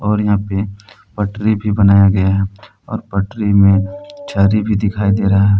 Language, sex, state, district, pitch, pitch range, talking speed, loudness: Hindi, male, Jharkhand, Palamu, 100 Hz, 100-105 Hz, 180 wpm, -15 LUFS